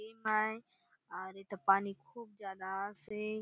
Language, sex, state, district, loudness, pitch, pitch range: Halbi, female, Chhattisgarh, Bastar, -36 LUFS, 205 Hz, 195-215 Hz